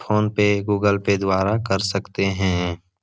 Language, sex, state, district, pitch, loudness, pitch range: Hindi, male, Bihar, Jahanabad, 100 Hz, -21 LUFS, 95-105 Hz